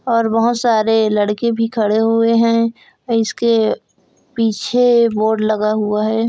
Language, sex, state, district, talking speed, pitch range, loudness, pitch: Hindi, female, Chhattisgarh, Kabirdham, 135 wpm, 215-230 Hz, -16 LUFS, 225 Hz